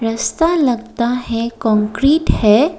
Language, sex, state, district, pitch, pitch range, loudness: Hindi, female, Assam, Kamrup Metropolitan, 235 Hz, 225-280 Hz, -16 LUFS